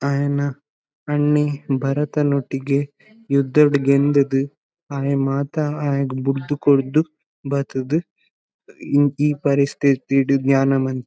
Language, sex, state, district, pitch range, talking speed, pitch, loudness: Tulu, male, Karnataka, Dakshina Kannada, 135-145 Hz, 100 wpm, 140 Hz, -20 LUFS